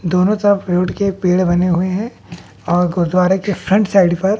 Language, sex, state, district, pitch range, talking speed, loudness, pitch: Hindi, male, Bihar, West Champaran, 180-200 Hz, 175 wpm, -15 LUFS, 185 Hz